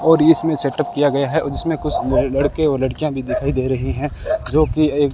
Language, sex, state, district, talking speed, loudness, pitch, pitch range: Hindi, male, Rajasthan, Bikaner, 220 wpm, -18 LUFS, 145 Hz, 140-155 Hz